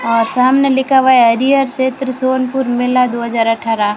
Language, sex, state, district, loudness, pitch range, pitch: Hindi, female, Rajasthan, Bikaner, -13 LUFS, 230-265 Hz, 255 Hz